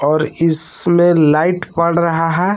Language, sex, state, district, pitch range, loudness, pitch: Hindi, male, Jharkhand, Palamu, 155-175 Hz, -14 LUFS, 165 Hz